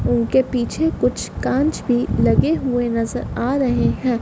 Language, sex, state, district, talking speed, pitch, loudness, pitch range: Hindi, female, Madhya Pradesh, Dhar, 155 wpm, 250 Hz, -19 LUFS, 240-275 Hz